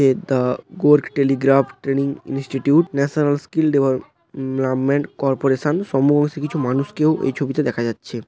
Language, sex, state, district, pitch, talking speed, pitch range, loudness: Bengali, male, West Bengal, Paschim Medinipur, 140 Hz, 140 wpm, 135-145 Hz, -19 LUFS